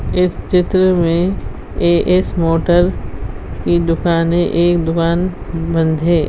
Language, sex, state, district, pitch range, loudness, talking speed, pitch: Hindi, female, Bihar, Madhepura, 160-175 Hz, -15 LUFS, 115 wpm, 170 Hz